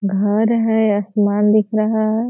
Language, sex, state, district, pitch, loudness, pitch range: Hindi, female, Bihar, Purnia, 215 Hz, -16 LUFS, 205-220 Hz